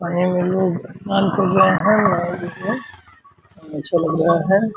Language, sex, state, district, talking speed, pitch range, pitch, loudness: Hindi, male, Bihar, Purnia, 125 wpm, 175-195 Hz, 185 Hz, -18 LUFS